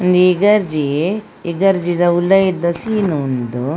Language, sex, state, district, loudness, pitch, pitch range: Tulu, female, Karnataka, Dakshina Kannada, -15 LUFS, 175 Hz, 160-195 Hz